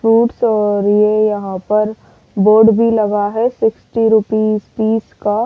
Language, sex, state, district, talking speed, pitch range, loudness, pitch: Hindi, female, Delhi, New Delhi, 145 wpm, 210-225 Hz, -14 LUFS, 215 Hz